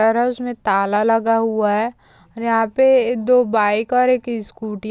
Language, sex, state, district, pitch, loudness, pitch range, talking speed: Hindi, female, Uttar Pradesh, Jyotiba Phule Nagar, 225 Hz, -18 LUFS, 215-245 Hz, 195 wpm